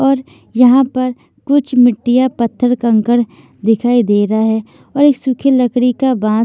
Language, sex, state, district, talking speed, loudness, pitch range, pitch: Hindi, female, Maharashtra, Washim, 150 wpm, -13 LUFS, 230-260 Hz, 245 Hz